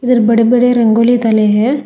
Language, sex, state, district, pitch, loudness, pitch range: Hindi, female, Telangana, Hyderabad, 235 Hz, -11 LUFS, 225-245 Hz